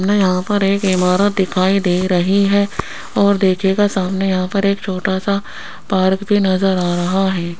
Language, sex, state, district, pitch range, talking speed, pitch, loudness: Hindi, female, Rajasthan, Jaipur, 185-200 Hz, 180 wpm, 190 Hz, -16 LUFS